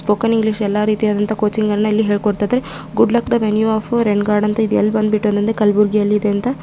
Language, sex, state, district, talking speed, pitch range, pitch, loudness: Kannada, female, Karnataka, Gulbarga, 245 wpm, 210-220 Hz, 215 Hz, -16 LUFS